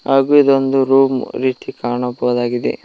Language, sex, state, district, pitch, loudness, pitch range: Kannada, male, Karnataka, Koppal, 130 Hz, -15 LUFS, 125-135 Hz